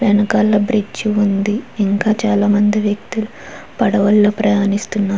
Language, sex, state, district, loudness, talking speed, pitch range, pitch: Telugu, female, Andhra Pradesh, Chittoor, -16 LUFS, 105 wpm, 205-215 Hz, 210 Hz